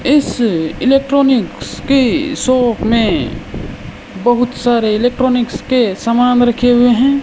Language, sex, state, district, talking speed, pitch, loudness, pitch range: Hindi, male, Rajasthan, Bikaner, 110 wpm, 245 Hz, -13 LUFS, 235-265 Hz